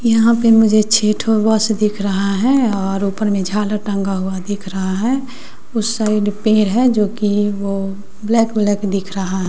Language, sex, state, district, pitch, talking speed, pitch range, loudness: Hindi, female, Bihar, West Champaran, 210 Hz, 185 wpm, 200-220 Hz, -16 LUFS